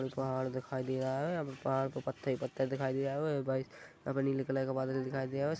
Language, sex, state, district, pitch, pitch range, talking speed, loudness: Hindi, male, Chhattisgarh, Rajnandgaon, 135 Hz, 130-135 Hz, 255 wpm, -36 LUFS